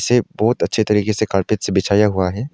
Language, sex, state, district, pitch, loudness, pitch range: Hindi, male, Arunachal Pradesh, Longding, 105 Hz, -17 LUFS, 95-110 Hz